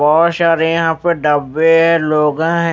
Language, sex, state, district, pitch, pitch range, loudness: Hindi, male, Maharashtra, Mumbai Suburban, 165 Hz, 155-165 Hz, -13 LUFS